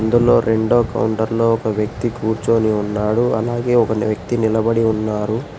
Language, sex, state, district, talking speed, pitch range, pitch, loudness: Telugu, male, Telangana, Hyderabad, 120 wpm, 110-115 Hz, 110 Hz, -17 LUFS